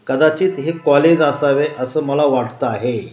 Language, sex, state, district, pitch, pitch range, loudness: Marathi, male, Maharashtra, Washim, 145 Hz, 140-155 Hz, -16 LUFS